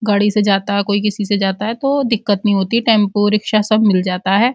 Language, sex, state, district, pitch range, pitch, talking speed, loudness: Hindi, female, Uttar Pradesh, Muzaffarnagar, 200-215 Hz, 205 Hz, 265 wpm, -15 LUFS